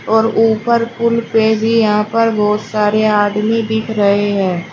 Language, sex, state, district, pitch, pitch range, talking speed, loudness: Hindi, female, Uttar Pradesh, Shamli, 220 Hz, 210-225 Hz, 165 wpm, -14 LUFS